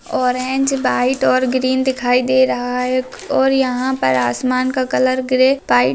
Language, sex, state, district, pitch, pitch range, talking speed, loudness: Hindi, female, Bihar, Saharsa, 255 Hz, 250-260 Hz, 170 wpm, -16 LUFS